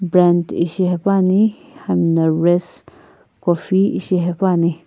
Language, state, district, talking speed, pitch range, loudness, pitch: Sumi, Nagaland, Kohima, 110 wpm, 170-190 Hz, -17 LUFS, 180 Hz